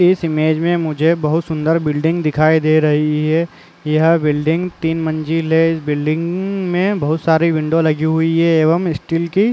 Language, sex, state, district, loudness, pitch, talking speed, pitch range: Hindi, male, Chhattisgarh, Korba, -16 LUFS, 160 Hz, 180 wpm, 155-165 Hz